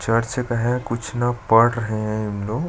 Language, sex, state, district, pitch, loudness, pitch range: Hindi, male, Chhattisgarh, Jashpur, 115 Hz, -21 LUFS, 110-120 Hz